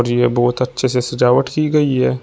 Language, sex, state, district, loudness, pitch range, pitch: Hindi, male, Uttar Pradesh, Shamli, -16 LUFS, 120-130 Hz, 125 Hz